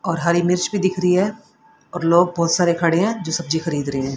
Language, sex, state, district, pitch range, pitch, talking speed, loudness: Hindi, female, Haryana, Rohtak, 165-180 Hz, 170 Hz, 260 wpm, -19 LUFS